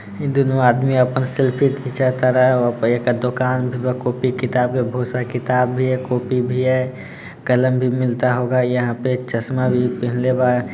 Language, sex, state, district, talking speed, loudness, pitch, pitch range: Bhojpuri, male, Bihar, Sitamarhi, 185 wpm, -18 LUFS, 125 Hz, 125-130 Hz